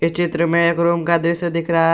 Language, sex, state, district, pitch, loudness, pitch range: Hindi, male, Jharkhand, Garhwa, 170 Hz, -18 LUFS, 165-170 Hz